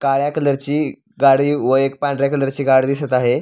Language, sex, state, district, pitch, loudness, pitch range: Marathi, male, Maharashtra, Pune, 140 Hz, -17 LUFS, 135-145 Hz